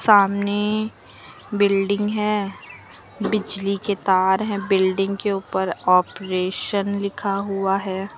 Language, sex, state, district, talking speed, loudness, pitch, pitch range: Hindi, female, Uttar Pradesh, Lucknow, 105 wpm, -21 LUFS, 200 Hz, 190-205 Hz